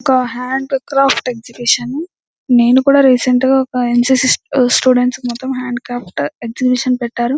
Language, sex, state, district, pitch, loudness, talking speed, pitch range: Telugu, female, Andhra Pradesh, Anantapur, 250 Hz, -14 LUFS, 130 wpm, 245-265 Hz